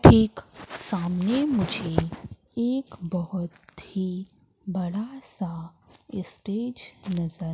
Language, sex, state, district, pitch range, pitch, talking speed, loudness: Hindi, female, Madhya Pradesh, Umaria, 180-225 Hz, 190 Hz, 80 wpm, -28 LUFS